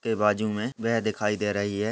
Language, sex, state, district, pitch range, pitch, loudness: Hindi, male, Jharkhand, Sahebganj, 105-110 Hz, 105 Hz, -27 LUFS